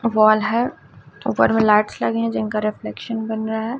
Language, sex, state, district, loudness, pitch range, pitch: Hindi, female, Chhattisgarh, Raipur, -20 LUFS, 210-225 Hz, 215 Hz